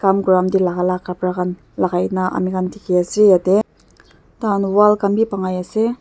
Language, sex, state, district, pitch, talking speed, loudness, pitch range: Nagamese, female, Nagaland, Dimapur, 185 Hz, 180 wpm, -17 LUFS, 180-200 Hz